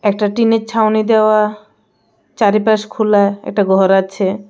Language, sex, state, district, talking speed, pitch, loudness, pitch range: Bengali, female, Tripura, West Tripura, 120 wpm, 210 Hz, -14 LUFS, 200-220 Hz